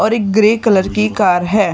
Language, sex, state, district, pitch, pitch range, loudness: Hindi, female, Maharashtra, Mumbai Suburban, 210 Hz, 195-215 Hz, -13 LUFS